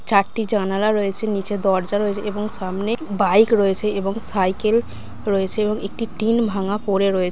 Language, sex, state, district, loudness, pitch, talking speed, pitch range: Bengali, female, West Bengal, Dakshin Dinajpur, -20 LUFS, 205 Hz, 155 wpm, 195-215 Hz